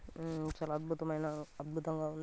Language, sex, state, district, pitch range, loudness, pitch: Telugu, male, Telangana, Nalgonda, 155-160 Hz, -40 LUFS, 155 Hz